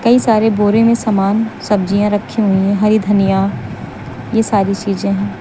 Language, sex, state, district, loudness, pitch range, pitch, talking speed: Hindi, female, Uttar Pradesh, Lucknow, -14 LUFS, 200-220 Hz, 205 Hz, 165 wpm